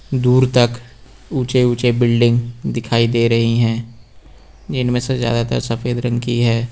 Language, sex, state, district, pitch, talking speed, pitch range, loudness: Hindi, male, Uttar Pradesh, Lucknow, 120 Hz, 145 wpm, 115-125 Hz, -17 LUFS